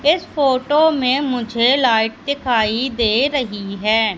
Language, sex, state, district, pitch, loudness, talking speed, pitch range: Hindi, female, Madhya Pradesh, Katni, 255 Hz, -17 LUFS, 130 wpm, 225-280 Hz